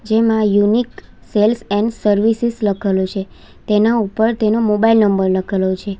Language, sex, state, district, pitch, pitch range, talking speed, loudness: Gujarati, female, Gujarat, Valsad, 210 Hz, 200-225 Hz, 140 wpm, -16 LUFS